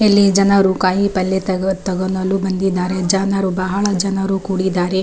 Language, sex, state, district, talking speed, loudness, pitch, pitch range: Kannada, female, Karnataka, Raichur, 120 wpm, -17 LUFS, 190 Hz, 185-195 Hz